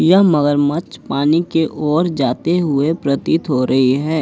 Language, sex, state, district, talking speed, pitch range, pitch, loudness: Hindi, male, Jharkhand, Ranchi, 155 wpm, 140-165 Hz, 150 Hz, -16 LUFS